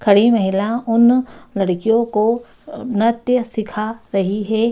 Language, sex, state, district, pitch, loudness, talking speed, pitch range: Hindi, female, Bihar, Samastipur, 225 Hz, -17 LUFS, 115 wpm, 210-235 Hz